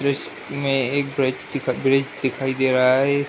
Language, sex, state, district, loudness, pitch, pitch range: Hindi, male, Uttar Pradesh, Ghazipur, -21 LUFS, 135 Hz, 130-140 Hz